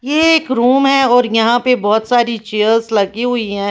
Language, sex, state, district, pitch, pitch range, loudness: Hindi, female, Maharashtra, Washim, 240 Hz, 220-250 Hz, -13 LUFS